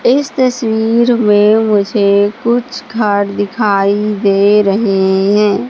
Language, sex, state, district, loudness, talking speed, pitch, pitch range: Hindi, female, Madhya Pradesh, Katni, -12 LUFS, 105 wpm, 210 Hz, 200-230 Hz